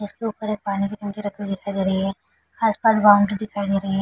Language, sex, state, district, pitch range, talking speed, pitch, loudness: Hindi, female, Chhattisgarh, Bilaspur, 195-210 Hz, 270 wpm, 205 Hz, -22 LUFS